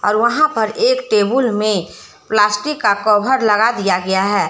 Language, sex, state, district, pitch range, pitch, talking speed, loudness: Hindi, female, Jharkhand, Deoghar, 205-260 Hz, 215 Hz, 175 wpm, -15 LUFS